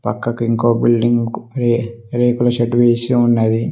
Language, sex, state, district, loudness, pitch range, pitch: Telugu, male, Telangana, Mahabubabad, -16 LUFS, 115-120 Hz, 120 Hz